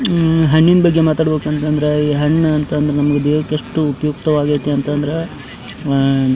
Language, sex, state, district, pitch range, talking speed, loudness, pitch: Kannada, male, Karnataka, Dharwad, 145-160 Hz, 140 wpm, -15 LUFS, 150 Hz